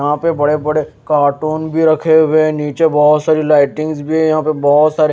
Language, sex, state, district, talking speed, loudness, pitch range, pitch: Hindi, male, Haryana, Jhajjar, 235 wpm, -13 LUFS, 150-155 Hz, 155 Hz